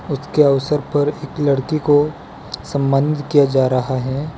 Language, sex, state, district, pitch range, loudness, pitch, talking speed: Hindi, male, Gujarat, Valsad, 135-150 Hz, -17 LUFS, 145 Hz, 165 wpm